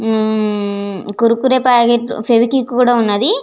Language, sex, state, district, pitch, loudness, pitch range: Telugu, female, Andhra Pradesh, Visakhapatnam, 230 Hz, -14 LUFS, 215-245 Hz